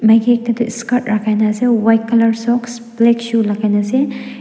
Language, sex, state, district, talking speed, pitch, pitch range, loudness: Nagamese, female, Nagaland, Dimapur, 190 wpm, 230 Hz, 225-240 Hz, -15 LUFS